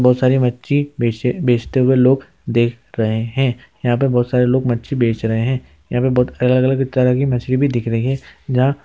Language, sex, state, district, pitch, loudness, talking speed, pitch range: Hindi, male, Uttar Pradesh, Hamirpur, 125 Hz, -17 LUFS, 210 wpm, 120-130 Hz